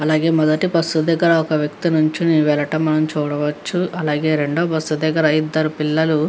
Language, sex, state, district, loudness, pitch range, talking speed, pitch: Telugu, female, Andhra Pradesh, Krishna, -18 LUFS, 155-165 Hz, 150 wpm, 155 Hz